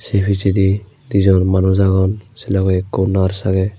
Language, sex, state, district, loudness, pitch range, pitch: Chakma, male, Tripura, Unakoti, -16 LUFS, 95-100 Hz, 95 Hz